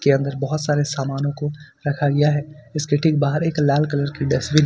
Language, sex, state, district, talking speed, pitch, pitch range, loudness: Hindi, male, Jharkhand, Ranchi, 230 wpm, 145 Hz, 140-150 Hz, -21 LUFS